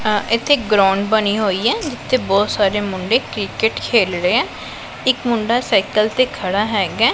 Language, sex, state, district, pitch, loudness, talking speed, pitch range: Punjabi, female, Punjab, Pathankot, 215 Hz, -17 LUFS, 170 wpm, 200-235 Hz